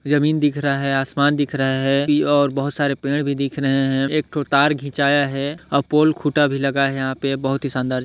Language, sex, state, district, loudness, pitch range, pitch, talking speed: Hindi, male, Chhattisgarh, Sarguja, -19 LUFS, 135-145 Hz, 140 Hz, 240 wpm